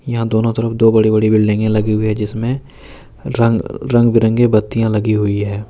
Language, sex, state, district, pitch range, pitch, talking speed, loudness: Hindi, male, Jharkhand, Deoghar, 105-115 Hz, 110 Hz, 180 wpm, -15 LUFS